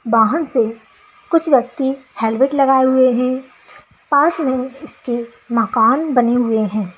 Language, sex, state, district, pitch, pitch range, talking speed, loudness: Hindi, female, Bihar, Muzaffarpur, 255 Hz, 235-280 Hz, 140 wpm, -16 LUFS